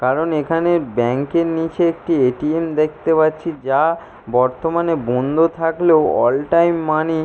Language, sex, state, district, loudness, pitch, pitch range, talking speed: Bengali, male, West Bengal, Jalpaiguri, -17 LUFS, 160 Hz, 145-165 Hz, 155 wpm